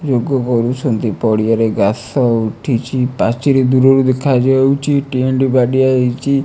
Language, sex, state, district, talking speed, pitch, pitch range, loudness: Odia, male, Odisha, Malkangiri, 110 wpm, 130 Hz, 120-135 Hz, -14 LUFS